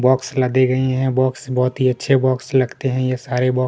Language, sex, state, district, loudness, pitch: Hindi, male, Chhattisgarh, Kabirdham, -18 LUFS, 130 Hz